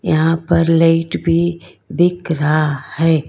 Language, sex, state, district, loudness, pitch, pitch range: Hindi, female, Karnataka, Bangalore, -16 LUFS, 165 Hz, 155-170 Hz